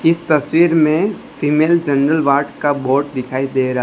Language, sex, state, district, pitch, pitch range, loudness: Hindi, male, Gujarat, Valsad, 145 Hz, 140-160 Hz, -16 LUFS